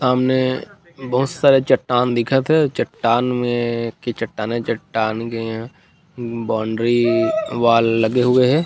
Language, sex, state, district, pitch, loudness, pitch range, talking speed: Chhattisgarhi, male, Chhattisgarh, Rajnandgaon, 120 Hz, -18 LUFS, 115-130 Hz, 75 wpm